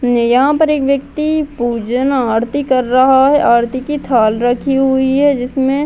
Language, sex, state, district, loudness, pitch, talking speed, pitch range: Hindi, female, Bihar, Gaya, -13 LUFS, 265 Hz, 185 wpm, 245-280 Hz